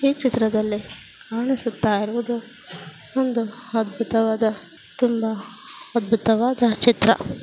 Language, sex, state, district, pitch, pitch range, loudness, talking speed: Kannada, female, Karnataka, Dakshina Kannada, 230 Hz, 215-245 Hz, -22 LUFS, 75 wpm